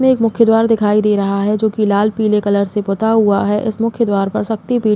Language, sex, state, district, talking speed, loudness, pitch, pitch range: Hindi, female, Uttar Pradesh, Jalaun, 290 wpm, -15 LUFS, 215 Hz, 205-225 Hz